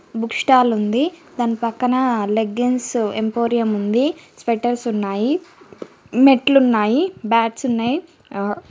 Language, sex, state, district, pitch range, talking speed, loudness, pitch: Telugu, female, Andhra Pradesh, Srikakulam, 225-265 Hz, 115 wpm, -18 LUFS, 235 Hz